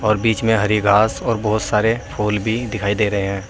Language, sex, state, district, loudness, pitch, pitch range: Hindi, male, Uttar Pradesh, Saharanpur, -18 LUFS, 105 Hz, 105-110 Hz